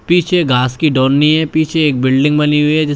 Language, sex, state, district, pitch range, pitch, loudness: Hindi, male, Uttar Pradesh, Shamli, 140-160 Hz, 150 Hz, -13 LUFS